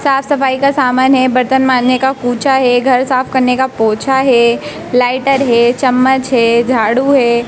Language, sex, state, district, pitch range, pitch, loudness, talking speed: Hindi, female, Madhya Pradesh, Dhar, 245-265 Hz, 255 Hz, -11 LUFS, 175 wpm